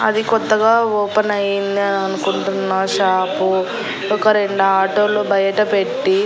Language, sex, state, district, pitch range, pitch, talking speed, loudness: Telugu, female, Andhra Pradesh, Annamaya, 195-210 Hz, 200 Hz, 85 wpm, -17 LUFS